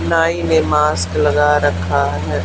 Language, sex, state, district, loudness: Hindi, female, Haryana, Charkhi Dadri, -15 LUFS